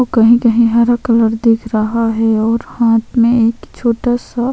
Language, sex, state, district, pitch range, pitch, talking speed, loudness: Hindi, female, Chhattisgarh, Sukma, 225-240 Hz, 230 Hz, 210 wpm, -13 LUFS